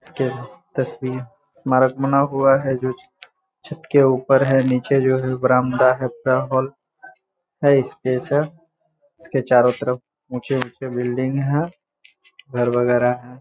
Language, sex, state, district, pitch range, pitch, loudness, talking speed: Hindi, male, Bihar, Saharsa, 125-140 Hz, 130 Hz, -19 LUFS, 120 wpm